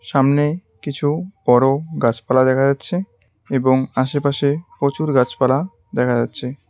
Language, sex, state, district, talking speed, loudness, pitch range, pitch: Bengali, male, West Bengal, Cooch Behar, 105 wpm, -18 LUFS, 125-145 Hz, 135 Hz